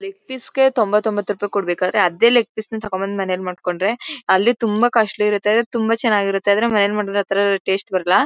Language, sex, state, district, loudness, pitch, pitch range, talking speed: Kannada, female, Karnataka, Mysore, -18 LUFS, 210 Hz, 195-230 Hz, 190 wpm